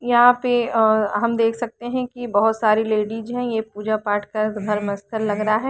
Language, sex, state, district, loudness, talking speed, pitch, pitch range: Hindi, female, Chandigarh, Chandigarh, -20 LUFS, 210 wpm, 220 Hz, 215-240 Hz